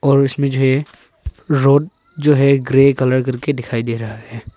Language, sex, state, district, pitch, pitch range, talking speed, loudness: Hindi, male, Arunachal Pradesh, Papum Pare, 135 Hz, 125-140 Hz, 185 wpm, -15 LUFS